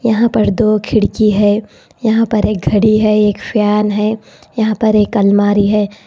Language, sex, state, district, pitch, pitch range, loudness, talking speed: Hindi, female, Karnataka, Koppal, 210 Hz, 205-220 Hz, -13 LUFS, 180 wpm